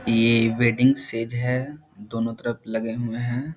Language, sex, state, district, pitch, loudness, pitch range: Hindi, male, Bihar, Jahanabad, 120 Hz, -23 LUFS, 115-130 Hz